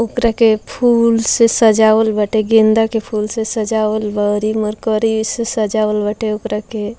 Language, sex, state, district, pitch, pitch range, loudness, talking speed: Bhojpuri, female, Bihar, Muzaffarpur, 220 Hz, 215-225 Hz, -15 LUFS, 165 wpm